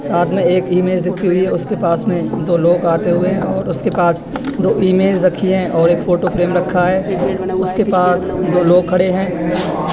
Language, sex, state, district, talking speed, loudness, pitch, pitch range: Hindi, male, Uttar Pradesh, Etah, 195 wpm, -15 LUFS, 180 Hz, 175-190 Hz